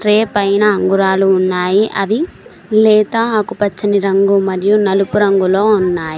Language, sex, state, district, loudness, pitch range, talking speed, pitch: Telugu, female, Telangana, Mahabubabad, -13 LUFS, 195-210 Hz, 105 wpm, 200 Hz